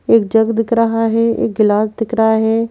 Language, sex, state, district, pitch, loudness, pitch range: Hindi, female, Madhya Pradesh, Bhopal, 225 Hz, -14 LUFS, 220-230 Hz